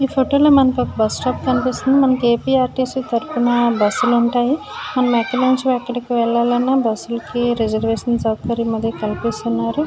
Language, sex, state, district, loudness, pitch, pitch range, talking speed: Telugu, female, Andhra Pradesh, Srikakulam, -17 LUFS, 245 Hz, 230-255 Hz, 165 wpm